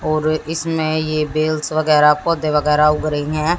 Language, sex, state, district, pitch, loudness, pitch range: Hindi, female, Haryana, Jhajjar, 155 Hz, -17 LUFS, 150-155 Hz